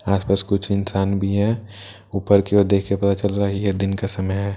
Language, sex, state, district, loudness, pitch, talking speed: Hindi, male, Bihar, Katihar, -20 LUFS, 100 Hz, 265 wpm